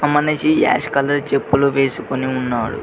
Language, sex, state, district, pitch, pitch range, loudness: Telugu, male, Telangana, Mahabubabad, 140 Hz, 130-150 Hz, -17 LUFS